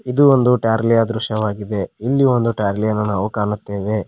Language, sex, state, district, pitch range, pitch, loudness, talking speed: Kannada, male, Karnataka, Koppal, 105-120 Hz, 110 Hz, -18 LUFS, 130 wpm